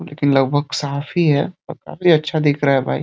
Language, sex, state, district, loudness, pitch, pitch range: Hindi, male, Uttar Pradesh, Deoria, -18 LUFS, 145 Hz, 140-155 Hz